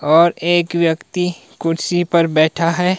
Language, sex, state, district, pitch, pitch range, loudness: Hindi, male, Himachal Pradesh, Shimla, 170 Hz, 165-175 Hz, -16 LUFS